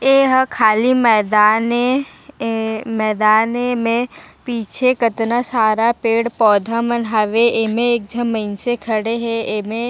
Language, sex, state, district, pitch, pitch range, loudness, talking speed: Chhattisgarhi, female, Chhattisgarh, Raigarh, 230 Hz, 220-240 Hz, -16 LUFS, 125 wpm